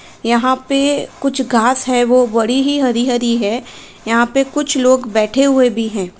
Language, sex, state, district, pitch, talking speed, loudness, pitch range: Hindi, female, Uttar Pradesh, Varanasi, 250 Hz, 175 wpm, -15 LUFS, 235-270 Hz